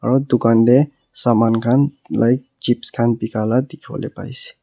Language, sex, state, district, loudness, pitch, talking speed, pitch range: Nagamese, male, Nagaland, Kohima, -17 LUFS, 125 Hz, 170 wpm, 115-135 Hz